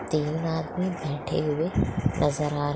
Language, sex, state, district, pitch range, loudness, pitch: Hindi, female, Bihar, Muzaffarpur, 145-160 Hz, -27 LUFS, 150 Hz